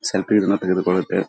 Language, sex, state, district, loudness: Kannada, male, Karnataka, Bellary, -19 LUFS